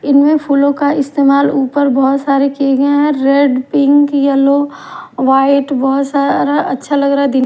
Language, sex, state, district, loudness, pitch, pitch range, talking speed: Hindi, female, Maharashtra, Mumbai Suburban, -12 LUFS, 280 Hz, 275-285 Hz, 175 wpm